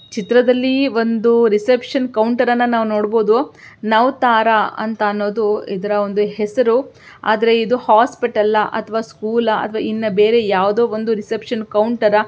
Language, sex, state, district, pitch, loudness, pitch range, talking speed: Kannada, female, Karnataka, Belgaum, 225 Hz, -16 LUFS, 210-240 Hz, 130 wpm